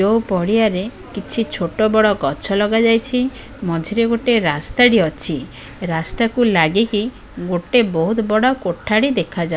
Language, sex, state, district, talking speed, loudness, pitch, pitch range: Odia, female, Odisha, Khordha, 120 wpm, -17 LUFS, 215 Hz, 175-230 Hz